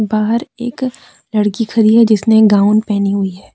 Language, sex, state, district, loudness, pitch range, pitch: Hindi, female, Jharkhand, Deoghar, -13 LUFS, 205-230 Hz, 215 Hz